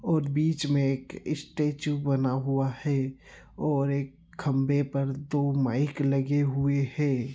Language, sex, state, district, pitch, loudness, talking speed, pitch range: Hindi, male, Chhattisgarh, Sukma, 140 Hz, -28 LUFS, 145 wpm, 135-145 Hz